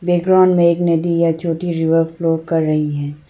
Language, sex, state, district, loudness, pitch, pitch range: Hindi, female, Arunachal Pradesh, Lower Dibang Valley, -16 LUFS, 165 Hz, 160-170 Hz